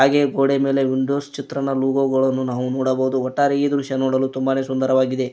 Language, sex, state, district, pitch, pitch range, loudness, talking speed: Kannada, male, Karnataka, Koppal, 135 Hz, 130-140 Hz, -20 LUFS, 170 wpm